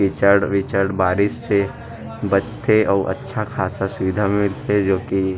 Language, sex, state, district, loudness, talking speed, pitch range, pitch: Chhattisgarhi, male, Chhattisgarh, Rajnandgaon, -19 LUFS, 120 wpm, 95-110 Hz, 100 Hz